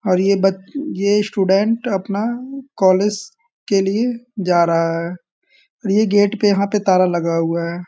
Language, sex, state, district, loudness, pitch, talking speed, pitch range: Hindi, male, Bihar, Sitamarhi, -18 LUFS, 200 Hz, 165 wpm, 185-225 Hz